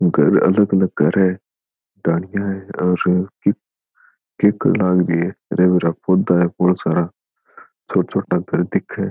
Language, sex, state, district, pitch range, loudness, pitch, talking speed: Rajasthani, male, Rajasthan, Churu, 90-100 Hz, -18 LUFS, 95 Hz, 140 wpm